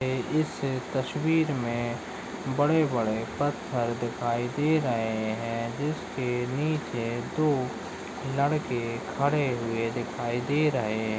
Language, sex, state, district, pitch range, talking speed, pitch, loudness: Hindi, male, Maharashtra, Chandrapur, 115-145 Hz, 100 wpm, 125 Hz, -28 LUFS